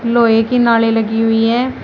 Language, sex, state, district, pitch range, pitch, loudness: Hindi, female, Uttar Pradesh, Shamli, 225-235 Hz, 230 Hz, -13 LUFS